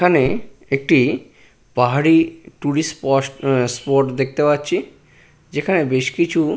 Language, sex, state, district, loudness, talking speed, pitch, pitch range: Bengali, male, West Bengal, Purulia, -18 LUFS, 90 wpm, 145 Hz, 135-160 Hz